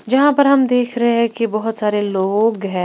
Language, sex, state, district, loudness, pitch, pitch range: Hindi, female, Punjab, Pathankot, -16 LUFS, 230 Hz, 210-245 Hz